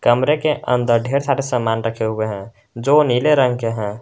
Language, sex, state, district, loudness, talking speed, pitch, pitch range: Hindi, male, Jharkhand, Garhwa, -18 LUFS, 210 wpm, 120 Hz, 115-140 Hz